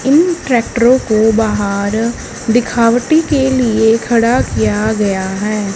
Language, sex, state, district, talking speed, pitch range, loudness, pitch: Hindi, female, Haryana, Charkhi Dadri, 115 wpm, 210-245 Hz, -13 LUFS, 225 Hz